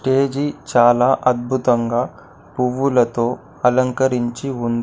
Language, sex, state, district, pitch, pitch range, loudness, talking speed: Telugu, male, Telangana, Komaram Bheem, 125 Hz, 120-135 Hz, -18 LUFS, 75 wpm